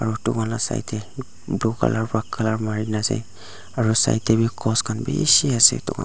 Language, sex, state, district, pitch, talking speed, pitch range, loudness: Nagamese, male, Nagaland, Dimapur, 110 Hz, 170 wpm, 110-115 Hz, -20 LUFS